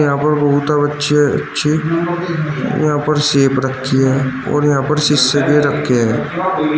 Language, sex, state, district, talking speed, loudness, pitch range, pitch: Hindi, male, Uttar Pradesh, Shamli, 150 wpm, -15 LUFS, 135-150 Hz, 145 Hz